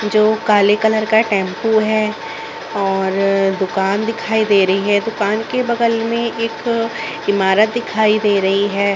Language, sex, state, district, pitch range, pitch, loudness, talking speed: Hindi, female, Chhattisgarh, Raigarh, 200-225 Hz, 215 Hz, -16 LUFS, 145 wpm